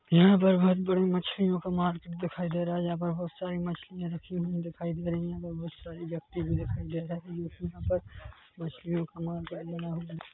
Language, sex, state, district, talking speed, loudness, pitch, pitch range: Hindi, male, Chhattisgarh, Bilaspur, 215 wpm, -31 LUFS, 170 Hz, 165-175 Hz